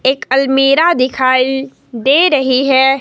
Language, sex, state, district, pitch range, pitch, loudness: Hindi, female, Himachal Pradesh, Shimla, 260-275 Hz, 270 Hz, -12 LUFS